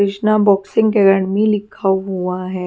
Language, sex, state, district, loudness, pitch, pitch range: Hindi, female, Haryana, Jhajjar, -16 LUFS, 195 Hz, 190-210 Hz